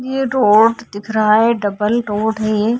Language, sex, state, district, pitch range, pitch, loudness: Hindi, female, Uttar Pradesh, Jyotiba Phule Nagar, 210-235 Hz, 220 Hz, -15 LUFS